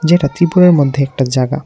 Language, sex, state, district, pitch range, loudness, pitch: Bengali, male, Tripura, West Tripura, 135-175 Hz, -12 LUFS, 145 Hz